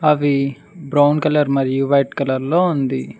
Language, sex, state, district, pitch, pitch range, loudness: Telugu, male, Telangana, Mahabubabad, 140 Hz, 135-150 Hz, -17 LUFS